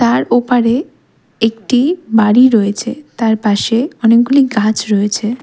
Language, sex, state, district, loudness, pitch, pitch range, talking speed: Bengali, female, West Bengal, Darjeeling, -13 LUFS, 230 Hz, 220-250 Hz, 110 wpm